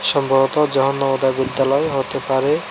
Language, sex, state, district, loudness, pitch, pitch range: Bengali, male, Tripura, West Tripura, -18 LUFS, 135 Hz, 135-140 Hz